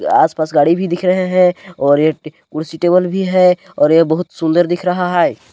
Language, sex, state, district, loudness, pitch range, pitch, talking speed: Hindi, male, Chhattisgarh, Balrampur, -14 LUFS, 160-180 Hz, 175 Hz, 205 wpm